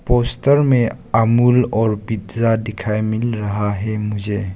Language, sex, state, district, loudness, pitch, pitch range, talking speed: Hindi, male, Arunachal Pradesh, Lower Dibang Valley, -18 LUFS, 110 Hz, 105-120 Hz, 130 wpm